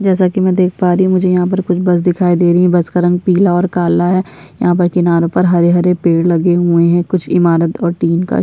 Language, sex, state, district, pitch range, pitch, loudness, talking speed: Hindi, female, Bihar, Kishanganj, 175-180 Hz, 180 Hz, -12 LUFS, 270 wpm